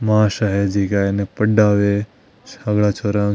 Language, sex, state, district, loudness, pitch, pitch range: Marwari, male, Rajasthan, Nagaur, -18 LUFS, 105 Hz, 100-105 Hz